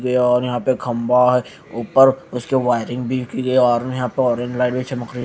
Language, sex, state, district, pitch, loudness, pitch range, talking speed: Hindi, male, Haryana, Jhajjar, 125 Hz, -18 LUFS, 120-130 Hz, 230 wpm